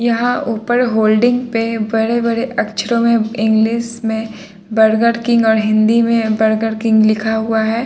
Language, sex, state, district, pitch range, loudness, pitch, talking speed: Hindi, male, Uttar Pradesh, Muzaffarnagar, 220-235 Hz, -15 LUFS, 225 Hz, 145 wpm